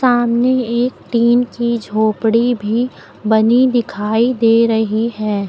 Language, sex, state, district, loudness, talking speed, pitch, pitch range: Hindi, female, Uttar Pradesh, Lucknow, -15 LUFS, 120 wpm, 235 Hz, 220-240 Hz